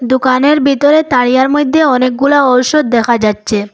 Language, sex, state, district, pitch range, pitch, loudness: Bengali, female, Assam, Hailakandi, 245-285 Hz, 260 Hz, -10 LUFS